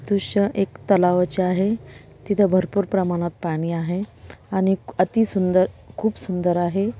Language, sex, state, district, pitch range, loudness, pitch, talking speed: Marathi, female, Maharashtra, Dhule, 180-200 Hz, -22 LUFS, 190 Hz, 130 wpm